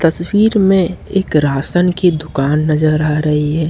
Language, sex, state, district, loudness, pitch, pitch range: Hindi, male, Jharkhand, Ranchi, -14 LUFS, 160 Hz, 150-180 Hz